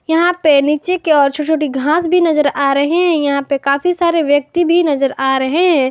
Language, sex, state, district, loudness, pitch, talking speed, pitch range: Hindi, female, Jharkhand, Garhwa, -14 LUFS, 300 Hz, 235 wpm, 280-340 Hz